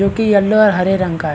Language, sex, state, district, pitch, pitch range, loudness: Hindi, male, Bihar, Supaul, 195 Hz, 180-210 Hz, -13 LUFS